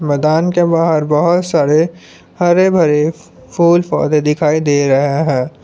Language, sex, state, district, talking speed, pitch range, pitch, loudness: Hindi, male, Jharkhand, Palamu, 140 wpm, 150-170 Hz, 160 Hz, -13 LUFS